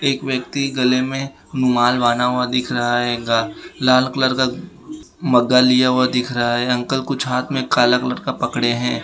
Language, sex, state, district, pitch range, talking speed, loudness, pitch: Hindi, male, Gujarat, Valsad, 120-130 Hz, 200 wpm, -18 LUFS, 125 Hz